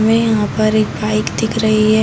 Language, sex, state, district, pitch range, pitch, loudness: Hindi, female, Bihar, Samastipur, 215-220 Hz, 215 Hz, -15 LUFS